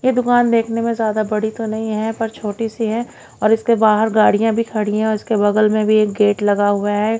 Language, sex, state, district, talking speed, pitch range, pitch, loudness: Hindi, female, Haryana, Jhajjar, 250 wpm, 215-225 Hz, 220 Hz, -17 LUFS